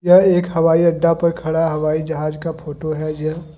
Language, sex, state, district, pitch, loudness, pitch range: Hindi, male, Jharkhand, Deoghar, 160 Hz, -18 LUFS, 155-170 Hz